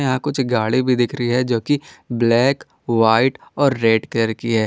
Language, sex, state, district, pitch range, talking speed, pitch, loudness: Hindi, male, Jharkhand, Ranchi, 115-135 Hz, 205 wpm, 120 Hz, -18 LUFS